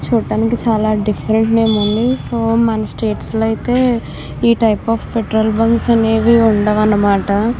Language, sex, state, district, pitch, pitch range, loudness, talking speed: Telugu, female, Andhra Pradesh, Chittoor, 225 Hz, 215-230 Hz, -15 LUFS, 135 wpm